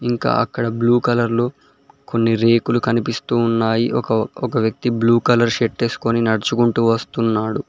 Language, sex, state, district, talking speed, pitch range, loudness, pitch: Telugu, male, Telangana, Mahabubabad, 135 wpm, 115-120 Hz, -18 LUFS, 115 Hz